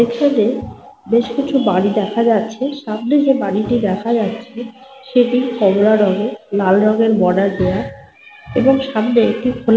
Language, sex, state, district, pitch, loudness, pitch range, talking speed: Bengali, female, Jharkhand, Sahebganj, 225 Hz, -16 LUFS, 210-250 Hz, 140 wpm